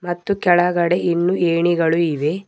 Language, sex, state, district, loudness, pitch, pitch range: Kannada, male, Karnataka, Bidar, -18 LUFS, 175 Hz, 170-180 Hz